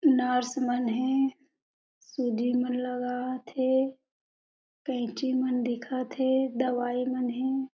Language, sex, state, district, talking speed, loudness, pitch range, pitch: Chhattisgarhi, female, Chhattisgarh, Jashpur, 110 wpm, -29 LUFS, 250-265 Hz, 255 Hz